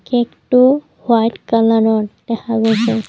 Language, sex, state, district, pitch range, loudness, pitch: Assamese, female, Assam, Kamrup Metropolitan, 225-240 Hz, -15 LUFS, 230 Hz